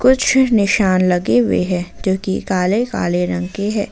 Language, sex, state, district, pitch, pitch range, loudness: Hindi, female, Jharkhand, Ranchi, 190 Hz, 180-215 Hz, -16 LUFS